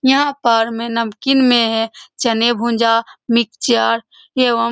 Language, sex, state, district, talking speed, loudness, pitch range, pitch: Hindi, female, Bihar, Saran, 155 wpm, -16 LUFS, 230-255 Hz, 235 Hz